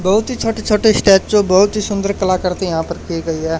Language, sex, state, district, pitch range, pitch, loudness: Hindi, male, Haryana, Charkhi Dadri, 175-210 Hz, 195 Hz, -15 LUFS